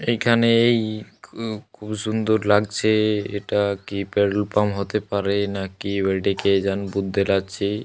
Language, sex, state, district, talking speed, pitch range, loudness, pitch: Bengali, male, Jharkhand, Jamtara, 120 wpm, 100-110 Hz, -22 LUFS, 100 Hz